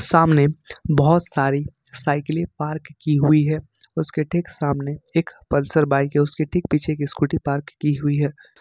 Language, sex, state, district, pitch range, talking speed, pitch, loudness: Hindi, male, Jharkhand, Ranchi, 145-155 Hz, 165 wpm, 150 Hz, -21 LUFS